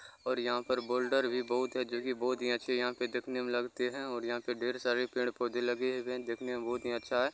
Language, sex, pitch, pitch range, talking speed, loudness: Maithili, male, 125 Hz, 120-125 Hz, 260 wpm, -34 LUFS